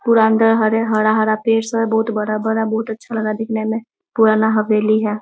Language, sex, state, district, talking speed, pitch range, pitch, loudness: Hindi, female, Bihar, Muzaffarpur, 185 wpm, 215-225 Hz, 220 Hz, -17 LUFS